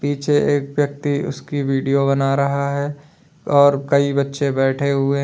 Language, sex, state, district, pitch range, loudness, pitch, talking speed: Hindi, male, Uttar Pradesh, Lalitpur, 140-145 Hz, -18 LUFS, 140 Hz, 150 wpm